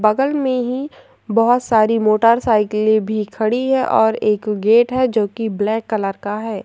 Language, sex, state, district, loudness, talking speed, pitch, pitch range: Hindi, female, Uttar Pradesh, Jyotiba Phule Nagar, -17 LUFS, 165 wpm, 220 Hz, 215-245 Hz